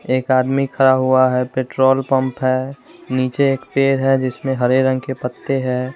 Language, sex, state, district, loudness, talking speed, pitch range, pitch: Hindi, male, Chandigarh, Chandigarh, -17 LUFS, 180 wpm, 130-135 Hz, 130 Hz